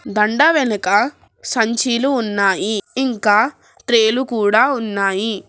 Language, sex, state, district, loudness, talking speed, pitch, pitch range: Telugu, female, Telangana, Hyderabad, -16 LUFS, 100 wpm, 225 Hz, 205-260 Hz